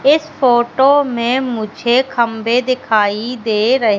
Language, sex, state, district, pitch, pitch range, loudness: Hindi, female, Madhya Pradesh, Katni, 245 Hz, 225-260 Hz, -15 LUFS